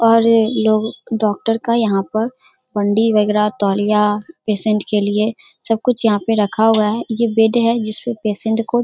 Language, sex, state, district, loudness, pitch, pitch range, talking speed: Hindi, female, Bihar, Darbhanga, -17 LUFS, 220 Hz, 210-230 Hz, 185 wpm